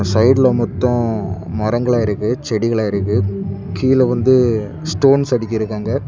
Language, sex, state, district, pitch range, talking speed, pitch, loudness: Tamil, male, Tamil Nadu, Kanyakumari, 105-125 Hz, 100 wpm, 110 Hz, -16 LUFS